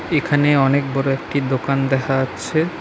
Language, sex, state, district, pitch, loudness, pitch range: Bengali, male, West Bengal, Alipurduar, 135 Hz, -19 LUFS, 135-145 Hz